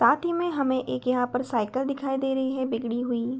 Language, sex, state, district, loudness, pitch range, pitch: Hindi, female, Bihar, Begusarai, -27 LUFS, 245-270 Hz, 260 Hz